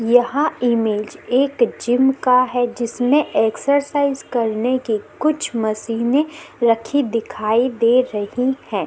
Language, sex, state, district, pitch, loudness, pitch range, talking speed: Hindi, female, Chhattisgarh, Korba, 245 Hz, -19 LUFS, 230-270 Hz, 120 wpm